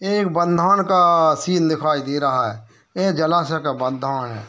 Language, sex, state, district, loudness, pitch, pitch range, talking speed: Hindi, male, Bihar, Muzaffarpur, -19 LUFS, 160 Hz, 135-175 Hz, 200 wpm